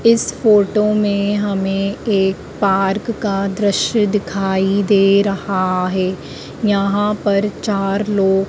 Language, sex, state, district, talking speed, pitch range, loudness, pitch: Hindi, female, Madhya Pradesh, Dhar, 115 wpm, 195-210 Hz, -17 LUFS, 200 Hz